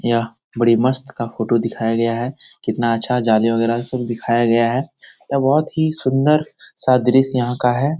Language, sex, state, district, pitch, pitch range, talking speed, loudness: Hindi, male, Bihar, Jahanabad, 120 Hz, 115-135 Hz, 195 wpm, -18 LUFS